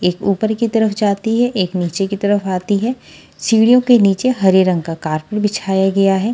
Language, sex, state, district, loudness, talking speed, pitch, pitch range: Hindi, female, Haryana, Charkhi Dadri, -15 LUFS, 210 wpm, 200 Hz, 190-225 Hz